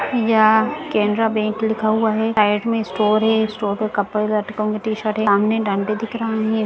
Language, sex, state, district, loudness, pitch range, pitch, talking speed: Hindi, female, Bihar, Muzaffarpur, -19 LUFS, 210-220 Hz, 215 Hz, 205 wpm